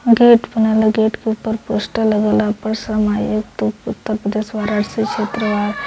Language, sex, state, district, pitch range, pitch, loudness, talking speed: Hindi, female, Uttar Pradesh, Varanasi, 210-220 Hz, 215 Hz, -17 LUFS, 195 wpm